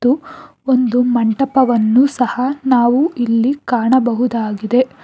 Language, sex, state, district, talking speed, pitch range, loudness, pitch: Kannada, female, Karnataka, Bangalore, 70 wpm, 240-265 Hz, -15 LUFS, 250 Hz